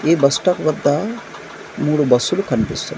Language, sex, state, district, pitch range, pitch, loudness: Telugu, male, Andhra Pradesh, Manyam, 130-180 Hz, 150 Hz, -17 LUFS